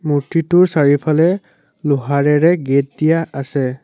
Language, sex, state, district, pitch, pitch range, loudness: Assamese, male, Assam, Sonitpur, 150 Hz, 140-165 Hz, -15 LUFS